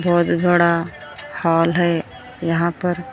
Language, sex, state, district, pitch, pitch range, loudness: Hindi, male, Maharashtra, Gondia, 170 Hz, 165-175 Hz, -18 LUFS